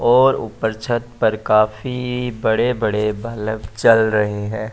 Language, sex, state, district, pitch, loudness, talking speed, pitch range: Hindi, male, Delhi, New Delhi, 110 Hz, -18 LUFS, 125 wpm, 110-120 Hz